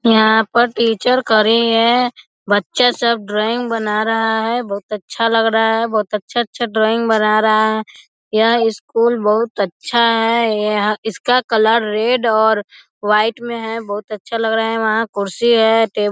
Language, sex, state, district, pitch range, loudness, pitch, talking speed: Hindi, female, Bihar, East Champaran, 215-230 Hz, -16 LUFS, 225 Hz, 165 wpm